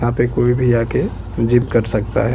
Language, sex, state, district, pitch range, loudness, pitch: Hindi, male, Chhattisgarh, Bastar, 110-120 Hz, -17 LUFS, 120 Hz